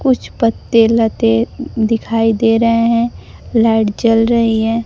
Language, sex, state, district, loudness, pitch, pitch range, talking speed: Hindi, female, Bihar, Kaimur, -14 LUFS, 230 Hz, 225-230 Hz, 135 wpm